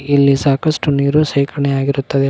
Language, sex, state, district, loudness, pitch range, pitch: Kannada, male, Karnataka, Koppal, -15 LUFS, 140-145 Hz, 140 Hz